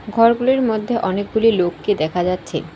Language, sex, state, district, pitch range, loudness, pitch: Bengali, female, West Bengal, Alipurduar, 180-230 Hz, -18 LUFS, 210 Hz